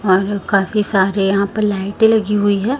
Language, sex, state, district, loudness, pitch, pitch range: Hindi, female, Chhattisgarh, Raipur, -16 LUFS, 200 Hz, 195-210 Hz